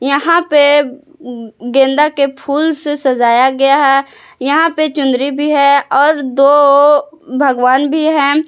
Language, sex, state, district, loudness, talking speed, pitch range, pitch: Hindi, female, Jharkhand, Palamu, -11 LUFS, 135 wpm, 270-300 Hz, 280 Hz